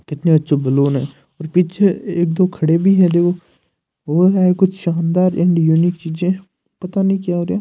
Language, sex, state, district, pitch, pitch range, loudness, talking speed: Hindi, male, Rajasthan, Nagaur, 175 Hz, 160-185 Hz, -16 LUFS, 190 wpm